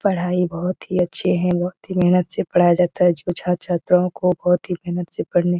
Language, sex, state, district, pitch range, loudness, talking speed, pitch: Hindi, female, Bihar, Jahanabad, 175-180 Hz, -20 LUFS, 225 wpm, 180 Hz